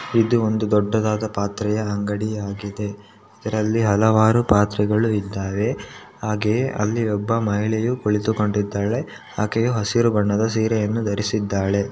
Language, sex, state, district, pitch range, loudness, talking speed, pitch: Kannada, male, Karnataka, Shimoga, 105-110 Hz, -21 LUFS, 100 wpm, 105 Hz